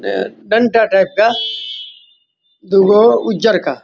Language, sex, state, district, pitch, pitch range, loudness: Hindi, male, Bihar, Vaishali, 200 Hz, 180-225 Hz, -13 LUFS